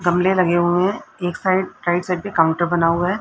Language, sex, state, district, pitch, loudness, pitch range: Hindi, female, Haryana, Rohtak, 180 Hz, -19 LUFS, 175-185 Hz